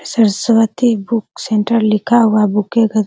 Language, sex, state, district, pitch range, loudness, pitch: Hindi, female, Bihar, Araria, 215-230 Hz, -14 LUFS, 225 Hz